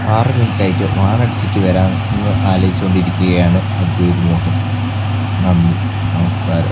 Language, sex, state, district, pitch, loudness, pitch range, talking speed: Malayalam, male, Kerala, Kasaragod, 95 Hz, -15 LUFS, 90-110 Hz, 80 wpm